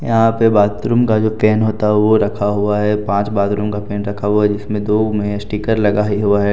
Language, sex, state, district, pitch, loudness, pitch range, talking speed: Hindi, male, Jharkhand, Deoghar, 105 Hz, -16 LUFS, 105-110 Hz, 240 wpm